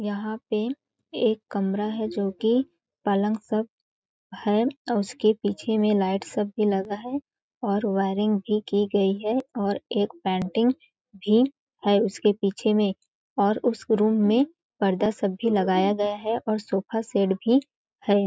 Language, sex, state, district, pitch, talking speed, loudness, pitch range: Hindi, female, Chhattisgarh, Balrampur, 210 Hz, 145 wpm, -25 LUFS, 200-230 Hz